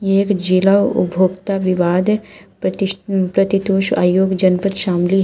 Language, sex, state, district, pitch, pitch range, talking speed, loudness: Hindi, female, Uttar Pradesh, Shamli, 195 Hz, 185-195 Hz, 115 wpm, -15 LUFS